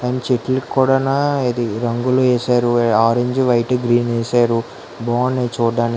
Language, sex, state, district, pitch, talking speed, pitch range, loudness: Telugu, female, Andhra Pradesh, Guntur, 120 Hz, 120 wpm, 120-130 Hz, -17 LUFS